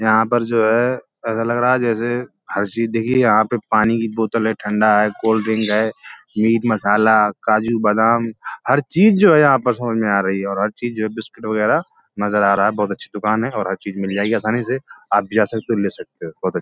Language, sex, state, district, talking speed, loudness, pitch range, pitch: Hindi, male, Uttar Pradesh, Hamirpur, 255 wpm, -18 LUFS, 105-115 Hz, 110 Hz